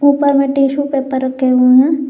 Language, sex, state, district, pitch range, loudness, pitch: Hindi, female, Jharkhand, Garhwa, 260-285 Hz, -13 LUFS, 275 Hz